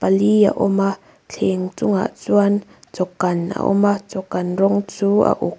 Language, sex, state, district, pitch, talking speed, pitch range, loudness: Mizo, female, Mizoram, Aizawl, 195 Hz, 180 wpm, 185-205 Hz, -19 LUFS